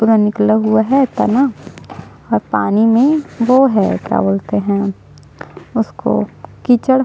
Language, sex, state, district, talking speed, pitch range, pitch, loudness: Hindi, female, Chhattisgarh, Sukma, 135 wpm, 180-250 Hz, 220 Hz, -14 LUFS